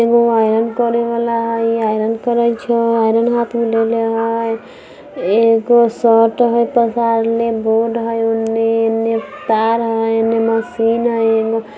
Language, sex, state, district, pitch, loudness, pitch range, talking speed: Maithili, female, Bihar, Samastipur, 230 Hz, -15 LUFS, 225-235 Hz, 140 wpm